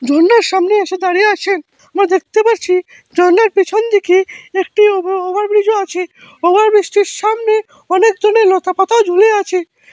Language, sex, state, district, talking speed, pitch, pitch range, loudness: Bengali, male, Assam, Hailakandi, 135 wpm, 390 Hz, 365-420 Hz, -13 LUFS